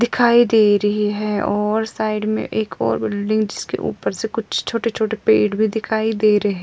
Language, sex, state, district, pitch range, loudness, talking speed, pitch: Hindi, female, Andhra Pradesh, Anantapur, 205-220 Hz, -19 LUFS, 180 wpm, 215 Hz